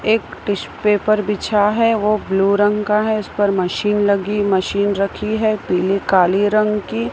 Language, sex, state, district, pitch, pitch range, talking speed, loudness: Hindi, female, Maharashtra, Mumbai Suburban, 205 Hz, 195-210 Hz, 175 wpm, -17 LUFS